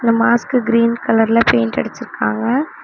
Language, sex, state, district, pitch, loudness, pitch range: Tamil, female, Tamil Nadu, Namakkal, 230 Hz, -16 LUFS, 225-235 Hz